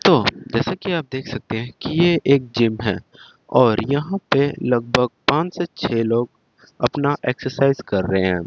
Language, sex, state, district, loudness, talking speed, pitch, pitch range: Hindi, male, Chandigarh, Chandigarh, -20 LUFS, 175 wpm, 130 Hz, 115-145 Hz